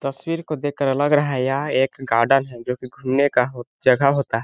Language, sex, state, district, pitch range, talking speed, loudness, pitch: Hindi, male, Chhattisgarh, Balrampur, 130-140 Hz, 230 wpm, -20 LUFS, 135 Hz